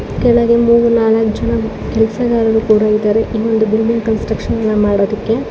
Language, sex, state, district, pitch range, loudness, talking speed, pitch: Kannada, female, Karnataka, Dakshina Kannada, 215-230 Hz, -14 LUFS, 110 wpm, 220 Hz